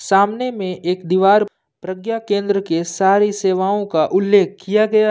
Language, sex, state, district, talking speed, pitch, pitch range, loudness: Hindi, male, Jharkhand, Ranchi, 155 wpm, 195 Hz, 185-205 Hz, -17 LUFS